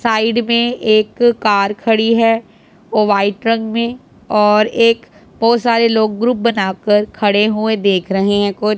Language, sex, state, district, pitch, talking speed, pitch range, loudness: Hindi, female, Punjab, Pathankot, 220 Hz, 155 wpm, 210-230 Hz, -14 LUFS